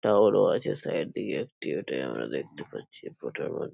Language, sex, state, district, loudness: Bengali, male, West Bengal, Paschim Medinipur, -29 LUFS